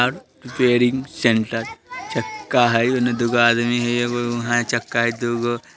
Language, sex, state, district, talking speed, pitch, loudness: Bajjika, male, Bihar, Vaishali, 145 wpm, 120 Hz, -20 LUFS